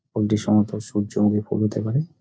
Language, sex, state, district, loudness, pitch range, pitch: Bengali, male, West Bengal, Dakshin Dinajpur, -22 LUFS, 105-110 Hz, 105 Hz